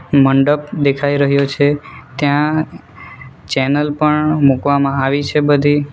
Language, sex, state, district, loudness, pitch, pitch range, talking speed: Gujarati, male, Gujarat, Valsad, -15 LUFS, 145 Hz, 135-150 Hz, 110 wpm